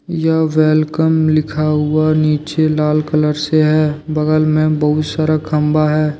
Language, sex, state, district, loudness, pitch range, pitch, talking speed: Hindi, male, Jharkhand, Deoghar, -14 LUFS, 150-155 Hz, 155 Hz, 145 wpm